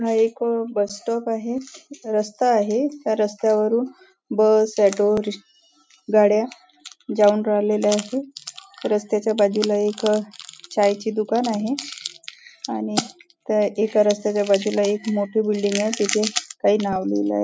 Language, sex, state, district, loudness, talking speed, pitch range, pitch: Marathi, female, Maharashtra, Nagpur, -21 LUFS, 115 wpm, 205-235 Hz, 215 Hz